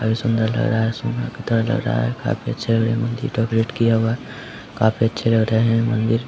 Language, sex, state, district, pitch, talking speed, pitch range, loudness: Hindi, male, Bihar, Samastipur, 115 Hz, 250 wpm, 110-115 Hz, -20 LUFS